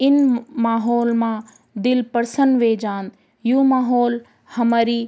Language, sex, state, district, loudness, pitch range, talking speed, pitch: Garhwali, female, Uttarakhand, Tehri Garhwal, -19 LUFS, 230-250 Hz, 120 wpm, 235 Hz